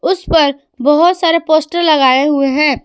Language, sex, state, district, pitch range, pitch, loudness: Hindi, female, Jharkhand, Palamu, 280-330 Hz, 300 Hz, -12 LUFS